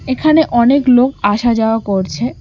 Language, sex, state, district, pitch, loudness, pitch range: Bengali, female, West Bengal, Cooch Behar, 235 Hz, -13 LUFS, 205-265 Hz